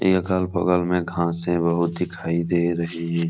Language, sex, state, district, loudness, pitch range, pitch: Hindi, male, Bihar, Supaul, -22 LUFS, 85-90 Hz, 85 Hz